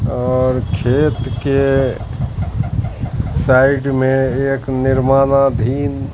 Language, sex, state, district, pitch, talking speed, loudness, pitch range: Hindi, male, Bihar, Katihar, 130 Hz, 80 wpm, -16 LUFS, 120-135 Hz